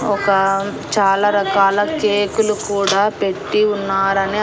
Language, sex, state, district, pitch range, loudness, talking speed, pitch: Telugu, female, Andhra Pradesh, Annamaya, 195-205 Hz, -16 LUFS, 95 wpm, 200 Hz